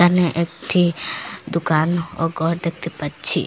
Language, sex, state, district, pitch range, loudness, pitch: Bengali, female, Assam, Hailakandi, 165-175 Hz, -20 LUFS, 170 Hz